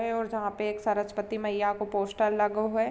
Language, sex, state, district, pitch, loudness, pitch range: Hindi, female, Uttar Pradesh, Varanasi, 210 Hz, -29 LUFS, 205-220 Hz